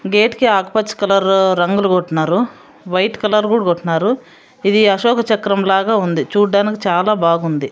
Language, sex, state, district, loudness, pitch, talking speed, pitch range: Telugu, female, Andhra Pradesh, Sri Satya Sai, -15 LUFS, 200 Hz, 140 wpm, 180-215 Hz